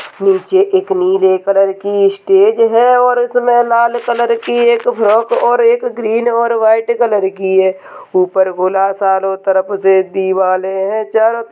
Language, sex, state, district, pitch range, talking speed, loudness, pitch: Hindi, male, Bihar, Purnia, 195-240 Hz, 160 wpm, -12 LUFS, 230 Hz